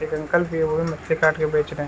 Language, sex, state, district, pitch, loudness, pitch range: Hindi, male, Jharkhand, Sahebganj, 155 Hz, -22 LUFS, 155-160 Hz